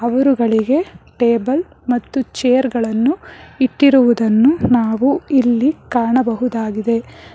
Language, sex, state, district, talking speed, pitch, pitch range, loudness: Kannada, female, Karnataka, Bangalore, 75 wpm, 250 Hz, 235-270 Hz, -16 LUFS